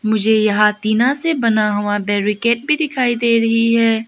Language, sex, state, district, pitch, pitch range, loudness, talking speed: Hindi, female, Arunachal Pradesh, Lower Dibang Valley, 225 Hz, 210-235 Hz, -16 LUFS, 175 wpm